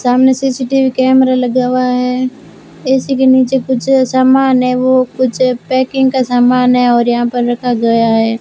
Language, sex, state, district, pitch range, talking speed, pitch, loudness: Hindi, female, Rajasthan, Bikaner, 245-260 Hz, 170 wpm, 255 Hz, -12 LUFS